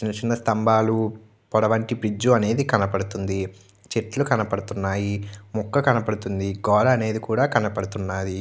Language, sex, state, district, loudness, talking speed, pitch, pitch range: Telugu, male, Andhra Pradesh, Chittoor, -23 LUFS, 115 wpm, 110 Hz, 100-115 Hz